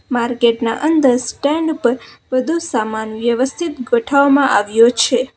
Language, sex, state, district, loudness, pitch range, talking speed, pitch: Gujarati, female, Gujarat, Valsad, -16 LUFS, 235-280 Hz, 125 wpm, 250 Hz